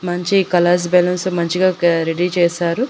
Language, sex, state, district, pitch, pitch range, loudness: Telugu, female, Andhra Pradesh, Annamaya, 175 Hz, 175-185 Hz, -16 LUFS